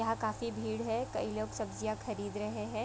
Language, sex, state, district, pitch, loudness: Hindi, female, Bihar, Vaishali, 215 Hz, -37 LUFS